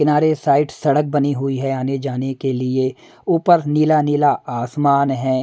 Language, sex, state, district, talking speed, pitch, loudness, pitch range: Hindi, male, Punjab, Pathankot, 165 wpm, 140 Hz, -18 LUFS, 135-150 Hz